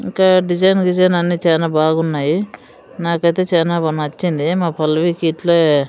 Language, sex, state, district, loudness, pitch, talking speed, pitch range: Telugu, female, Andhra Pradesh, Sri Satya Sai, -16 LUFS, 170 Hz, 155 wpm, 160-180 Hz